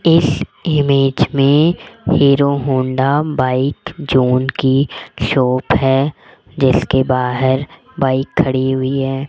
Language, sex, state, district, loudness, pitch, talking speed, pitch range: Hindi, female, Rajasthan, Jaipur, -15 LUFS, 135 Hz, 105 wpm, 130-145 Hz